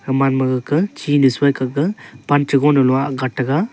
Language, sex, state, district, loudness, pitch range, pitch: Wancho, male, Arunachal Pradesh, Longding, -17 LUFS, 130-145 Hz, 140 Hz